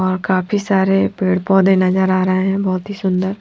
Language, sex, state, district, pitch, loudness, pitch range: Hindi, female, Haryana, Jhajjar, 190 Hz, -16 LUFS, 185-195 Hz